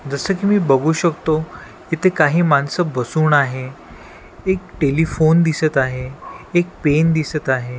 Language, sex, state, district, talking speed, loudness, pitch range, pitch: Marathi, male, Maharashtra, Washim, 140 wpm, -17 LUFS, 140-170 Hz, 155 Hz